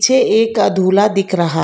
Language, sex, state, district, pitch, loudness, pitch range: Hindi, female, Karnataka, Bangalore, 200 Hz, -14 LUFS, 185-215 Hz